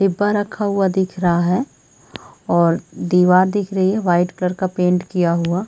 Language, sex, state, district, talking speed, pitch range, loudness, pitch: Hindi, female, Chhattisgarh, Sarguja, 180 wpm, 175-195 Hz, -18 LUFS, 185 Hz